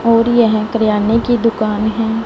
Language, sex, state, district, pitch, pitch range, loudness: Hindi, female, Punjab, Fazilka, 225 Hz, 215-230 Hz, -14 LUFS